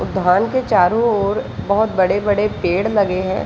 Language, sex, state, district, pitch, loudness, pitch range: Hindi, female, Jharkhand, Sahebganj, 200 Hz, -17 LUFS, 185-215 Hz